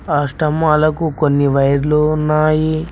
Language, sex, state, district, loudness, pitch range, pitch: Telugu, male, Telangana, Mahabubabad, -15 LUFS, 145-155 Hz, 155 Hz